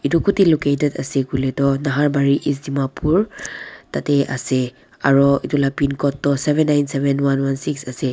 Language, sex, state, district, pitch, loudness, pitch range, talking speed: Nagamese, female, Nagaland, Dimapur, 140 Hz, -19 LUFS, 135-145 Hz, 155 wpm